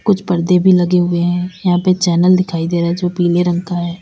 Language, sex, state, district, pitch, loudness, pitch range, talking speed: Hindi, female, Uttar Pradesh, Lalitpur, 175 Hz, -14 LUFS, 175-185 Hz, 270 wpm